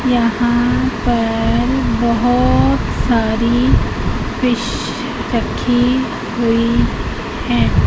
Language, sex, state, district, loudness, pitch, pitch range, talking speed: Hindi, female, Madhya Pradesh, Katni, -16 LUFS, 235 Hz, 220-245 Hz, 60 wpm